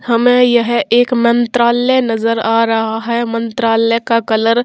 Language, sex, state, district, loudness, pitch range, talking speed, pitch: Hindi, female, Bihar, Vaishali, -13 LUFS, 230-240 Hz, 155 wpm, 230 Hz